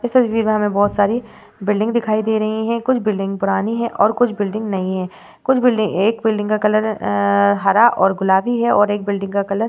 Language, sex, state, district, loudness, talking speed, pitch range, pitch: Hindi, female, Uttar Pradesh, Varanasi, -17 LUFS, 215 wpm, 195-225 Hz, 210 Hz